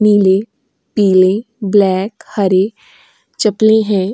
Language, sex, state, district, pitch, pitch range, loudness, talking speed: Hindi, female, Uttar Pradesh, Jyotiba Phule Nagar, 205 Hz, 195-220 Hz, -13 LUFS, 85 wpm